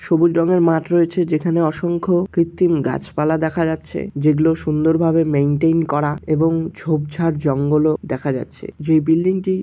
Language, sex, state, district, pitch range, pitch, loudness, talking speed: Bengali, male, West Bengal, Malda, 155-170 Hz, 160 Hz, -18 LUFS, 150 wpm